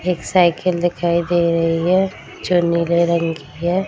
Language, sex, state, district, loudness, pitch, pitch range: Hindi, female, Bihar, Darbhanga, -18 LUFS, 170 Hz, 170-180 Hz